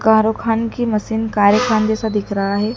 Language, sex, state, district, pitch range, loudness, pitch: Hindi, female, Madhya Pradesh, Dhar, 210-225 Hz, -17 LUFS, 220 Hz